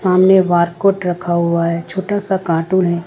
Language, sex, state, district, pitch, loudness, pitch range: Hindi, female, Jharkhand, Ranchi, 180 Hz, -15 LUFS, 170-190 Hz